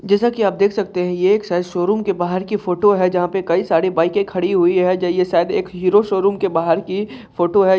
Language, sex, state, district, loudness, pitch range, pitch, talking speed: Hindi, male, Bihar, Saharsa, -17 LUFS, 180-200 Hz, 190 Hz, 240 wpm